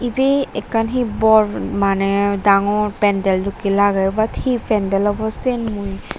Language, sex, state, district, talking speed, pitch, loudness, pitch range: Chakma, female, Tripura, Dhalai, 145 wpm, 205 Hz, -18 LUFS, 195-225 Hz